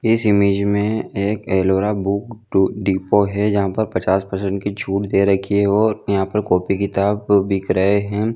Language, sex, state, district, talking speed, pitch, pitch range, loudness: Hindi, male, Chhattisgarh, Bilaspur, 180 wpm, 100 Hz, 95-105 Hz, -18 LUFS